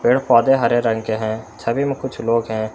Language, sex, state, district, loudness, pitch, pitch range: Hindi, male, Jharkhand, Palamu, -18 LUFS, 115 Hz, 110-130 Hz